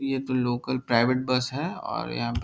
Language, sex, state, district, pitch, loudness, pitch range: Hindi, male, Bihar, Darbhanga, 130 Hz, -26 LUFS, 120-130 Hz